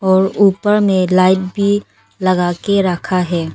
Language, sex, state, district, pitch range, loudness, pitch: Hindi, female, Arunachal Pradesh, Longding, 185-200 Hz, -14 LUFS, 190 Hz